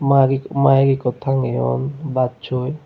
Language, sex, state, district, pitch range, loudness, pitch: Chakma, female, Tripura, West Tripura, 125-140 Hz, -18 LUFS, 135 Hz